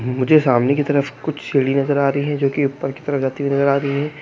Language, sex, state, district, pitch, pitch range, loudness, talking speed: Hindi, male, Chhattisgarh, Kabirdham, 140 Hz, 135-145 Hz, -18 LUFS, 300 wpm